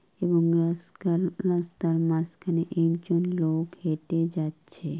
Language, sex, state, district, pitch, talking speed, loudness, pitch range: Bengali, female, West Bengal, Kolkata, 170 Hz, 110 wpm, -27 LUFS, 165-175 Hz